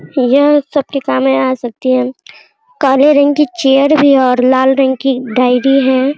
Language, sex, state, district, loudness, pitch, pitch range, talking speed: Hindi, female, Bihar, Araria, -11 LUFS, 270 Hz, 255-285 Hz, 165 wpm